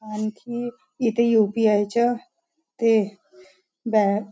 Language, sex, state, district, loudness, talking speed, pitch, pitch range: Marathi, female, Maharashtra, Nagpur, -22 LUFS, 95 wpm, 220 Hz, 210-240 Hz